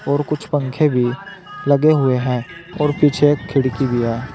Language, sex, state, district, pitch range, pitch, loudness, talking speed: Hindi, male, Uttar Pradesh, Saharanpur, 130-150 Hz, 140 Hz, -18 LUFS, 180 wpm